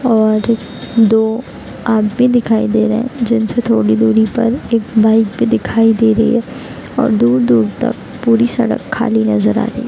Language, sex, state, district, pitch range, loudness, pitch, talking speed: Hindi, female, Bihar, East Champaran, 220-235 Hz, -13 LUFS, 225 Hz, 170 wpm